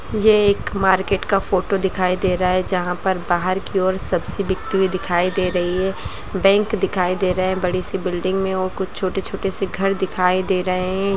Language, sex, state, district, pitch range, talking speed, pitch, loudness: Hindi, female, Bihar, Lakhisarai, 185-195 Hz, 205 wpm, 190 Hz, -20 LUFS